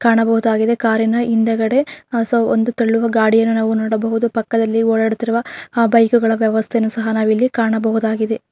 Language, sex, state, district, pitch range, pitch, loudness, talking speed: Kannada, female, Karnataka, Raichur, 220-230 Hz, 225 Hz, -16 LUFS, 125 wpm